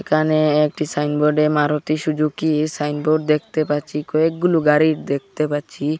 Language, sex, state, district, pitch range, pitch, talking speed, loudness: Bengali, male, Assam, Hailakandi, 150-155 Hz, 150 Hz, 150 wpm, -19 LUFS